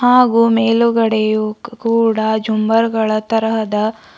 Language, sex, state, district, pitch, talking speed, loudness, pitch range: Kannada, female, Karnataka, Bidar, 225 Hz, 70 wpm, -15 LUFS, 220-230 Hz